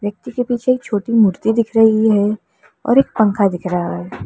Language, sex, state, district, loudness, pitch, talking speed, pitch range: Hindi, female, Uttar Pradesh, Lalitpur, -16 LUFS, 215 Hz, 195 wpm, 200-230 Hz